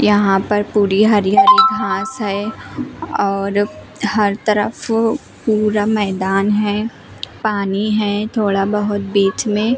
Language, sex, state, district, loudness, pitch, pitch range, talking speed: Hindi, female, Himachal Pradesh, Shimla, -16 LUFS, 210 Hz, 200-215 Hz, 110 wpm